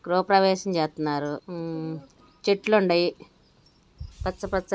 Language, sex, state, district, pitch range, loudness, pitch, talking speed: Telugu, female, Andhra Pradesh, Guntur, 160-195 Hz, -25 LUFS, 175 Hz, 65 wpm